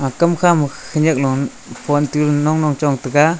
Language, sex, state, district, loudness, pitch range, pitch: Wancho, male, Arunachal Pradesh, Longding, -16 LUFS, 140-155 Hz, 150 Hz